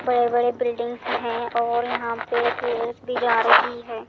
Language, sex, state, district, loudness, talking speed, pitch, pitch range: Hindi, female, Delhi, New Delhi, -22 LUFS, 160 wpm, 240 Hz, 235-240 Hz